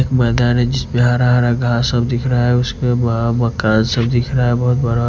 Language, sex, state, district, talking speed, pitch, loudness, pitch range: Hindi, male, Punjab, Kapurthala, 250 wpm, 120 Hz, -15 LUFS, 120-125 Hz